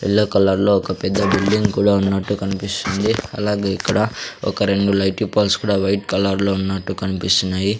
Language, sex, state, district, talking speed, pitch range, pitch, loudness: Telugu, male, Andhra Pradesh, Sri Satya Sai, 140 wpm, 95-105 Hz, 100 Hz, -18 LUFS